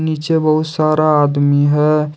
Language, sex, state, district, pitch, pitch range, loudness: Hindi, male, Jharkhand, Deoghar, 155 Hz, 150-155 Hz, -14 LUFS